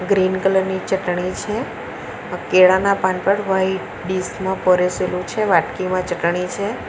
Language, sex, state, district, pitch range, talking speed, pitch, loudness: Gujarati, female, Gujarat, Valsad, 180-190 Hz, 150 wpm, 185 Hz, -19 LUFS